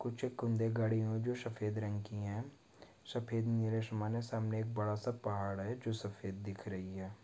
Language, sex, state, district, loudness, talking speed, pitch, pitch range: Hindi, male, Chhattisgarh, Jashpur, -39 LUFS, 165 wpm, 110 Hz, 105-115 Hz